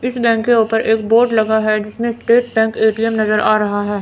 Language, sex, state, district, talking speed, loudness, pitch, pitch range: Hindi, female, Chandigarh, Chandigarh, 240 wpm, -15 LUFS, 225 Hz, 215-230 Hz